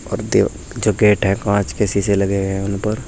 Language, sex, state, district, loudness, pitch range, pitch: Hindi, male, Uttar Pradesh, Saharanpur, -18 LUFS, 100-105 Hz, 100 Hz